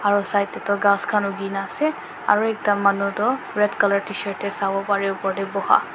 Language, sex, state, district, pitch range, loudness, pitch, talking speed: Nagamese, male, Nagaland, Dimapur, 200-205 Hz, -22 LUFS, 200 Hz, 230 wpm